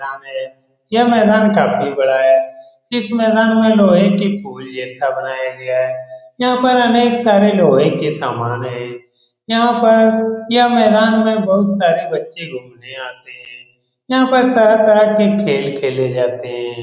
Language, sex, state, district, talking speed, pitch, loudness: Hindi, male, Bihar, Saran, 150 wpm, 200 Hz, -14 LUFS